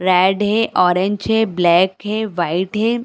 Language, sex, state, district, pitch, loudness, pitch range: Hindi, female, Chhattisgarh, Bilaspur, 190 Hz, -16 LUFS, 180-220 Hz